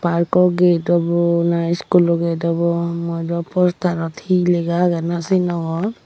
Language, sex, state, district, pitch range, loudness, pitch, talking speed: Chakma, female, Tripura, Dhalai, 170-180 Hz, -18 LUFS, 170 Hz, 180 wpm